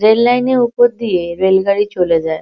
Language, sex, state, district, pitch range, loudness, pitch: Bengali, female, West Bengal, Kolkata, 180-240 Hz, -14 LUFS, 205 Hz